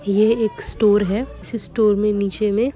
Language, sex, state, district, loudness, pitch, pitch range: Hindi, female, West Bengal, Kolkata, -19 LUFS, 210 Hz, 205-225 Hz